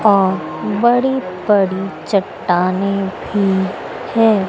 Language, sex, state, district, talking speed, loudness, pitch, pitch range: Hindi, female, Madhya Pradesh, Dhar, 80 wpm, -17 LUFS, 195 Hz, 185-210 Hz